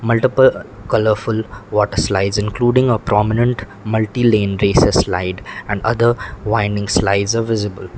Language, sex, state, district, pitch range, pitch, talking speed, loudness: English, male, Sikkim, Gangtok, 100-115 Hz, 105 Hz, 120 wpm, -16 LUFS